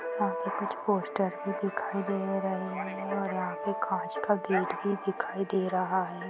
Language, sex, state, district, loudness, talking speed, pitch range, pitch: Hindi, female, Bihar, Saran, -31 LUFS, 180 wpm, 185-200 Hz, 195 Hz